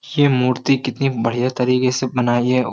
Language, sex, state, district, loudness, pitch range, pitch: Hindi, male, Uttar Pradesh, Jyotiba Phule Nagar, -18 LUFS, 125-135 Hz, 125 Hz